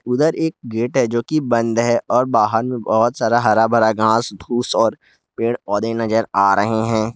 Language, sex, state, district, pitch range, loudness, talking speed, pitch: Hindi, male, Jharkhand, Garhwa, 110-120 Hz, -18 LUFS, 200 wpm, 115 Hz